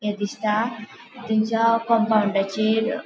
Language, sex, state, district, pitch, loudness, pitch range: Konkani, female, Goa, North and South Goa, 220 Hz, -22 LUFS, 210-230 Hz